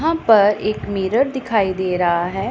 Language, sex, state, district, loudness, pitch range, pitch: Hindi, female, Punjab, Pathankot, -18 LUFS, 190-230 Hz, 205 Hz